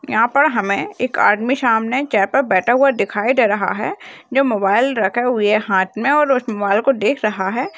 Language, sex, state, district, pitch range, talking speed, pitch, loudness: Hindi, female, Rajasthan, Nagaur, 205-265 Hz, 215 wpm, 230 Hz, -16 LUFS